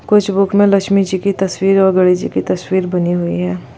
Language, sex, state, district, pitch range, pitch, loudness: Hindi, female, Bihar, Gopalganj, 180-195 Hz, 190 Hz, -14 LUFS